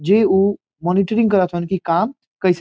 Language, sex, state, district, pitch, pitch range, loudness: Bhojpuri, male, Bihar, Saran, 190 Hz, 175-205 Hz, -18 LUFS